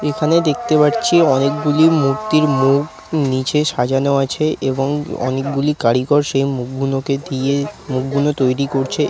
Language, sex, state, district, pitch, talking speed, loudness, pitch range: Bengali, male, West Bengal, Kolkata, 140 Hz, 120 wpm, -17 LUFS, 135-150 Hz